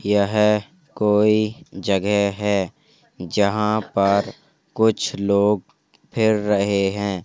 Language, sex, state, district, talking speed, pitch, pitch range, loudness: Hindi, male, Uttar Pradesh, Hamirpur, 90 wpm, 105 Hz, 100-110 Hz, -20 LUFS